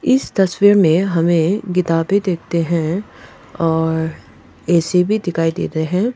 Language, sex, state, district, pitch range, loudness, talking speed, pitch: Hindi, female, Nagaland, Kohima, 165-195 Hz, -17 LUFS, 125 wpm, 175 Hz